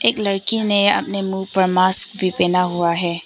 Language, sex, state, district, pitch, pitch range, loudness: Hindi, female, Arunachal Pradesh, Papum Pare, 190 Hz, 180-200 Hz, -17 LUFS